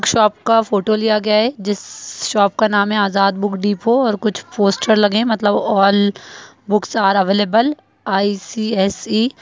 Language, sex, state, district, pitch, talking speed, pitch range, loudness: Hindi, female, Bihar, Jahanabad, 210 Hz, 170 wpm, 200-220 Hz, -16 LUFS